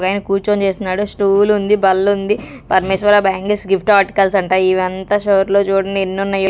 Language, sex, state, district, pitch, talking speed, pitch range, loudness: Telugu, female, Andhra Pradesh, Sri Satya Sai, 195 Hz, 150 wpm, 190-205 Hz, -15 LUFS